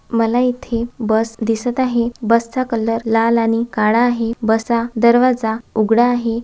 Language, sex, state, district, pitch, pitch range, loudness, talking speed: Marathi, female, Maharashtra, Dhule, 230 Hz, 225-240 Hz, -17 LUFS, 160 wpm